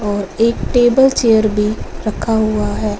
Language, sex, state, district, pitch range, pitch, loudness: Hindi, female, Punjab, Fazilka, 210-230 Hz, 215 Hz, -15 LUFS